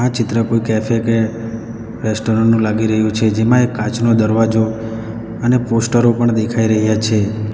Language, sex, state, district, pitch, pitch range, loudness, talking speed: Gujarati, male, Gujarat, Valsad, 115 Hz, 110-115 Hz, -16 LUFS, 150 wpm